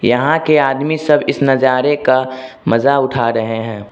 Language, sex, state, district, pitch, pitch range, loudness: Hindi, male, Arunachal Pradesh, Lower Dibang Valley, 130 Hz, 120-145 Hz, -14 LUFS